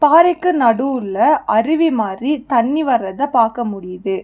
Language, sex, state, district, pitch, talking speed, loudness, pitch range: Tamil, female, Tamil Nadu, Nilgiris, 245 Hz, 115 wpm, -16 LUFS, 220-295 Hz